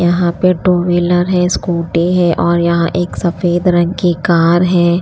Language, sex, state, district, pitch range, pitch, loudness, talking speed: Hindi, female, Haryana, Rohtak, 170-180 Hz, 175 Hz, -13 LUFS, 180 wpm